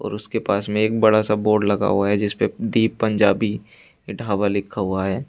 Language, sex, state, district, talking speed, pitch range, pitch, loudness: Hindi, male, Uttar Pradesh, Shamli, 205 wpm, 100-110 Hz, 105 Hz, -20 LUFS